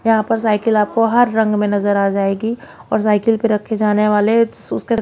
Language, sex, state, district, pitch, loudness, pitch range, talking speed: Hindi, female, Haryana, Jhajjar, 215 Hz, -16 LUFS, 210-225 Hz, 205 wpm